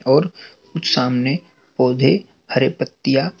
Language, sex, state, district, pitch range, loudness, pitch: Hindi, male, Madhya Pradesh, Dhar, 125-165 Hz, -18 LUFS, 135 Hz